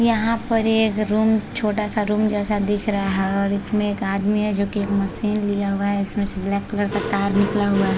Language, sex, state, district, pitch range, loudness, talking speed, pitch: Hindi, female, Chhattisgarh, Balrampur, 200-215 Hz, -21 LUFS, 250 wpm, 205 Hz